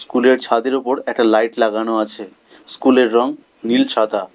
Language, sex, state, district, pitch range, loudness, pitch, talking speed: Bengali, male, West Bengal, Alipurduar, 115-135 Hz, -16 LUFS, 125 Hz, 150 wpm